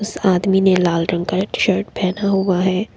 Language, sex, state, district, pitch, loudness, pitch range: Hindi, female, Assam, Kamrup Metropolitan, 185 Hz, -17 LUFS, 180-195 Hz